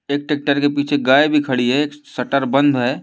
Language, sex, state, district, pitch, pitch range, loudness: Hindi, male, Madhya Pradesh, Umaria, 145 Hz, 135-145 Hz, -17 LUFS